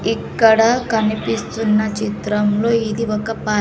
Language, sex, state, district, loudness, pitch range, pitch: Telugu, female, Andhra Pradesh, Sri Satya Sai, -17 LUFS, 210-225 Hz, 220 Hz